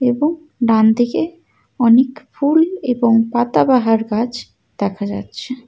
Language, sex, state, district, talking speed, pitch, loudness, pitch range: Bengali, female, West Bengal, Alipurduar, 95 wpm, 245 Hz, -16 LUFS, 225-280 Hz